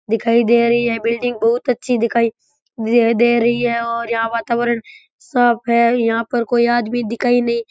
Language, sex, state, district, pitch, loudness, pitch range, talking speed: Rajasthani, male, Rajasthan, Churu, 235 Hz, -17 LUFS, 230-240 Hz, 200 wpm